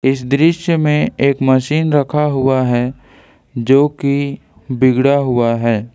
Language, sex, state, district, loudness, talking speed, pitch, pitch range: Hindi, male, Jharkhand, Ranchi, -14 LUFS, 130 wpm, 135 Hz, 125-145 Hz